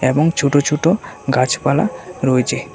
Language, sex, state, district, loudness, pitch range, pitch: Bengali, male, Tripura, West Tripura, -17 LUFS, 130-165 Hz, 145 Hz